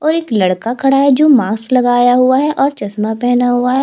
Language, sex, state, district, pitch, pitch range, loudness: Hindi, female, Chhattisgarh, Jashpur, 245 Hz, 230-275 Hz, -12 LUFS